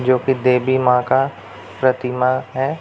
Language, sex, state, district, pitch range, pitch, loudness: Hindi, male, Bihar, Jamui, 125-130 Hz, 130 Hz, -18 LUFS